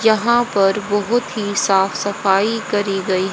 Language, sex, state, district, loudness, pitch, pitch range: Hindi, female, Haryana, Jhajjar, -17 LUFS, 205 Hz, 195-220 Hz